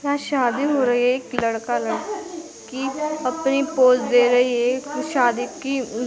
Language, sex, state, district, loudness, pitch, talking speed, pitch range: Hindi, female, Maharashtra, Aurangabad, -21 LUFS, 260 Hz, 160 wpm, 245-285 Hz